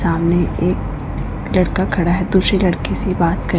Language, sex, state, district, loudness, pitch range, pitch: Hindi, female, Punjab, Pathankot, -17 LUFS, 170-185 Hz, 175 Hz